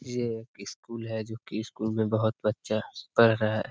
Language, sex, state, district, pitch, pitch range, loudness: Hindi, male, Bihar, Jamui, 110 Hz, 110-115 Hz, -29 LUFS